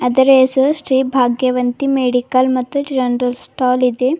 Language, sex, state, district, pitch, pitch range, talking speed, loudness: Kannada, female, Karnataka, Bidar, 255 Hz, 250-265 Hz, 130 wpm, -15 LUFS